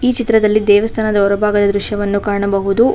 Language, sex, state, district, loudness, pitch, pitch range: Kannada, female, Karnataka, Bangalore, -14 LUFS, 205 Hz, 200-220 Hz